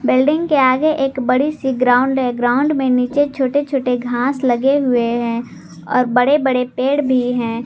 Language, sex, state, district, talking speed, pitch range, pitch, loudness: Hindi, female, Jharkhand, Garhwa, 180 wpm, 245-275 Hz, 255 Hz, -16 LUFS